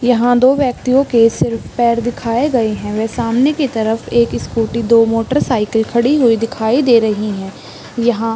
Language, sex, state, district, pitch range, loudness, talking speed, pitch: Hindi, female, Chhattisgarh, Balrampur, 225-245 Hz, -14 LUFS, 180 wpm, 235 Hz